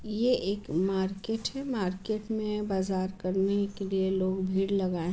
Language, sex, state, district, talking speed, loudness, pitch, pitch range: Hindi, female, Bihar, Muzaffarpur, 165 wpm, -30 LUFS, 195 Hz, 190-210 Hz